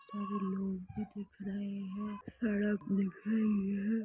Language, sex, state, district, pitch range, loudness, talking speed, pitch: Hindi, female, Chhattisgarh, Rajnandgaon, 200-215 Hz, -36 LUFS, 150 wpm, 205 Hz